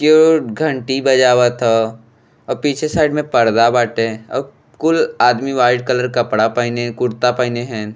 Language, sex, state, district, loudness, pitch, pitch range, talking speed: Bhojpuri, male, Uttar Pradesh, Deoria, -15 LUFS, 125 Hz, 115-135 Hz, 150 wpm